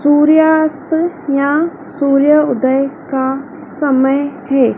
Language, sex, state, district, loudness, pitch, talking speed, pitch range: Hindi, female, Madhya Pradesh, Dhar, -13 LUFS, 285 Hz, 75 wpm, 275-310 Hz